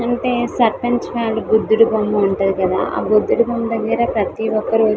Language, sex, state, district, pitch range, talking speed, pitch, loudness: Telugu, female, Andhra Pradesh, Visakhapatnam, 215-235 Hz, 135 wpm, 225 Hz, -17 LUFS